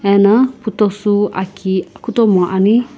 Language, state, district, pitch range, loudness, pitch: Sumi, Nagaland, Kohima, 190-225 Hz, -14 LUFS, 205 Hz